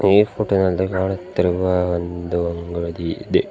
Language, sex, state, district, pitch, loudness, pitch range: Kannada, male, Karnataka, Bidar, 90 Hz, -20 LUFS, 85-95 Hz